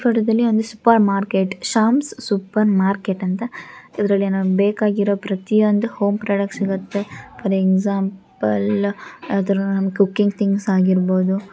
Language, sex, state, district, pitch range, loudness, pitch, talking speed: Kannada, female, Karnataka, Shimoga, 195-215 Hz, -19 LUFS, 200 Hz, 115 wpm